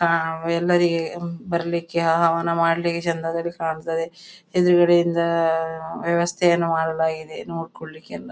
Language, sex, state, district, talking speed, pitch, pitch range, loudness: Kannada, female, Karnataka, Dakshina Kannada, 85 wpm, 170 Hz, 165-170 Hz, -22 LUFS